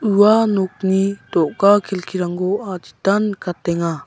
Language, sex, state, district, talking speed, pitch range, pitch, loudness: Garo, male, Meghalaya, South Garo Hills, 90 wpm, 175-200 Hz, 190 Hz, -18 LUFS